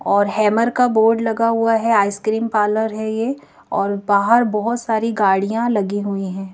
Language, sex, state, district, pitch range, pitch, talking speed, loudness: Hindi, female, Madhya Pradesh, Bhopal, 205-230 Hz, 220 Hz, 175 wpm, -18 LUFS